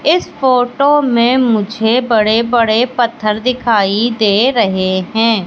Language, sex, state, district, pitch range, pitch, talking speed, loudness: Hindi, female, Madhya Pradesh, Katni, 215-250 Hz, 230 Hz, 120 wpm, -13 LUFS